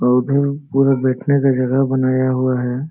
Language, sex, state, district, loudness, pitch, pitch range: Hindi, male, Jharkhand, Sahebganj, -17 LUFS, 130 Hz, 130-135 Hz